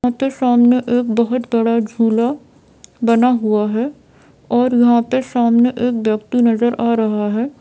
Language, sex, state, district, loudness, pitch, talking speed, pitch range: Hindi, female, Bihar, Saran, -16 LUFS, 240 Hz, 150 wpm, 230-245 Hz